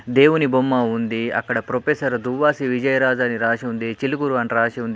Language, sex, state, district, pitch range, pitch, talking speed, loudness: Telugu, male, Telangana, Adilabad, 115-135 Hz, 125 Hz, 170 wpm, -20 LUFS